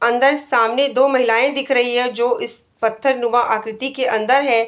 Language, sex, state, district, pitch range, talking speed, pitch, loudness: Hindi, female, Bihar, Araria, 230-270 Hz, 205 wpm, 245 Hz, -17 LUFS